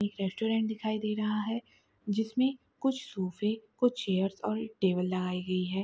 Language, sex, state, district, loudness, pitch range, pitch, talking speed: Hindi, female, Maharashtra, Solapur, -32 LUFS, 190-225 Hz, 215 Hz, 175 wpm